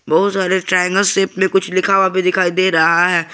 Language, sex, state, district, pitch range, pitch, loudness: Hindi, male, Jharkhand, Garhwa, 180-190 Hz, 185 Hz, -14 LUFS